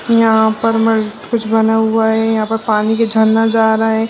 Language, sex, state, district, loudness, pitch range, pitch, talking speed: Hindi, female, Uttarakhand, Uttarkashi, -13 LUFS, 220-225 Hz, 225 Hz, 190 wpm